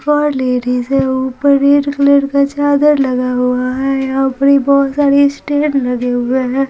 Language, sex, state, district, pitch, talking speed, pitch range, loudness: Hindi, female, Bihar, Patna, 275 Hz, 145 wpm, 260-280 Hz, -13 LUFS